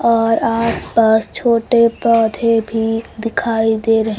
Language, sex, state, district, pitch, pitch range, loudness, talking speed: Hindi, female, Bihar, Kaimur, 225 Hz, 225-230 Hz, -15 LUFS, 115 wpm